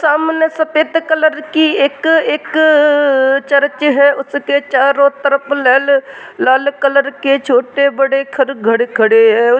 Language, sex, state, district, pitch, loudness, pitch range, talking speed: Hindi, male, Bihar, Begusarai, 280 Hz, -12 LUFS, 270-305 Hz, 125 wpm